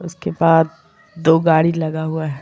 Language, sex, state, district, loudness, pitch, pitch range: Hindi, female, Bihar, Vaishali, -17 LUFS, 160 Hz, 160-165 Hz